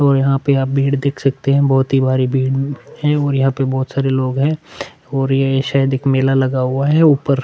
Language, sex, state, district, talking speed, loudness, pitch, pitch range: Hindi, male, Chhattisgarh, Korba, 235 wpm, -16 LUFS, 135 Hz, 135-140 Hz